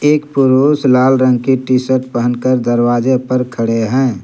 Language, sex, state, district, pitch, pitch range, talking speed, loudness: Hindi, male, Jharkhand, Garhwa, 130 Hz, 120-130 Hz, 155 wpm, -13 LUFS